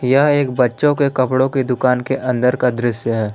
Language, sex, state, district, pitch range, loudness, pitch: Hindi, male, Jharkhand, Palamu, 125-135 Hz, -16 LUFS, 130 Hz